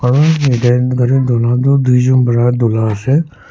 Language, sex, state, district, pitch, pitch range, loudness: Nagamese, male, Nagaland, Kohima, 125 Hz, 120-135 Hz, -12 LUFS